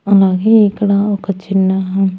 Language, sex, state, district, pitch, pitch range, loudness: Telugu, female, Andhra Pradesh, Annamaya, 195 Hz, 190-205 Hz, -13 LUFS